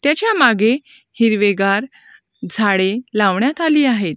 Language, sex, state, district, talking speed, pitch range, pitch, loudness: Marathi, female, Maharashtra, Gondia, 85 wpm, 200-285 Hz, 230 Hz, -16 LUFS